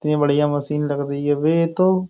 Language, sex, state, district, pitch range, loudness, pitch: Hindi, male, Uttar Pradesh, Jyotiba Phule Nagar, 145-165 Hz, -20 LUFS, 150 Hz